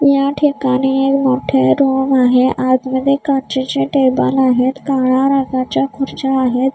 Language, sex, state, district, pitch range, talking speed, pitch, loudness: Marathi, female, Maharashtra, Gondia, 260-275 Hz, 115 wpm, 270 Hz, -14 LUFS